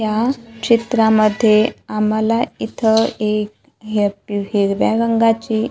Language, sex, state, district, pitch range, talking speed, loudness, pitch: Marathi, female, Maharashtra, Gondia, 215-230 Hz, 95 wpm, -17 LUFS, 220 Hz